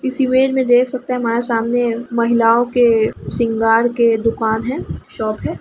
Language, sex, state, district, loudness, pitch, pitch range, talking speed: Hindi, female, Uttar Pradesh, Etah, -16 LUFS, 235 Hz, 230-245 Hz, 170 wpm